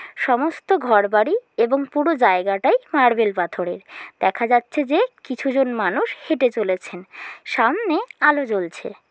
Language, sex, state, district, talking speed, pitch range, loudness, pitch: Bengali, female, West Bengal, Kolkata, 120 wpm, 205-315 Hz, -20 LUFS, 250 Hz